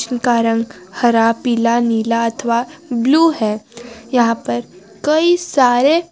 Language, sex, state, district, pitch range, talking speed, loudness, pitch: Hindi, female, Jharkhand, Garhwa, 230-260 Hz, 120 wpm, -16 LUFS, 235 Hz